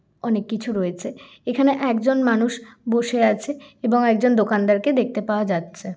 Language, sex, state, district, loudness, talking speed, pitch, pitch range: Bengali, female, West Bengal, Kolkata, -21 LUFS, 140 wpm, 235 Hz, 210-250 Hz